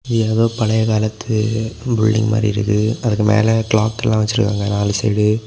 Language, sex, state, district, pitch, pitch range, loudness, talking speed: Tamil, male, Tamil Nadu, Kanyakumari, 110 Hz, 105-115 Hz, -17 LUFS, 130 wpm